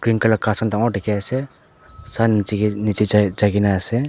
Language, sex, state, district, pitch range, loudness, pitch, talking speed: Nagamese, male, Nagaland, Dimapur, 105-115 Hz, -18 LUFS, 105 Hz, 160 wpm